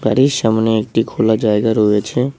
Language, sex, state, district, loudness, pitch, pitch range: Bengali, male, West Bengal, Cooch Behar, -15 LUFS, 110 Hz, 110-125 Hz